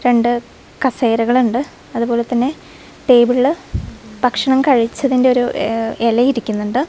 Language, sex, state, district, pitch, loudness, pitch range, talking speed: Malayalam, female, Kerala, Wayanad, 245 Hz, -16 LUFS, 235-260 Hz, 85 wpm